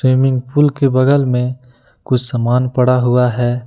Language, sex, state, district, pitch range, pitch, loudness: Hindi, male, Jharkhand, Ranchi, 125-130 Hz, 125 Hz, -14 LUFS